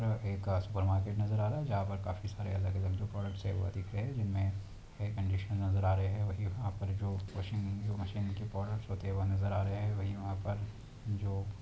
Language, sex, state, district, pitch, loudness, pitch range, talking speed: Hindi, male, Maharashtra, Pune, 100 Hz, -36 LUFS, 95-105 Hz, 245 wpm